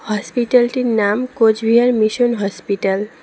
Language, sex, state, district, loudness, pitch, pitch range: Bengali, female, West Bengal, Cooch Behar, -16 LUFS, 225 Hz, 205-240 Hz